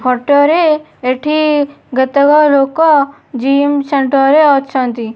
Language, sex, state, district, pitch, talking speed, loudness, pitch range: Odia, female, Odisha, Nuapada, 280 Hz, 105 wpm, -12 LUFS, 265-295 Hz